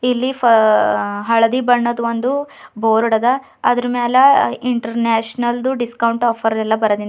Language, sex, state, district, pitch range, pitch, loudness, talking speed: Kannada, female, Karnataka, Bidar, 225-250 Hz, 235 Hz, -16 LUFS, 150 wpm